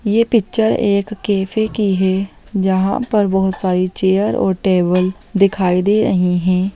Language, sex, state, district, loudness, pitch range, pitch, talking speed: Hindi, female, Bihar, Lakhisarai, -16 LUFS, 185-210 Hz, 195 Hz, 150 wpm